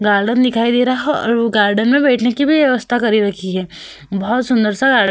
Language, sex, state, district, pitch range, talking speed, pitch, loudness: Hindi, female, Uttar Pradesh, Hamirpur, 210-255 Hz, 225 wpm, 235 Hz, -15 LUFS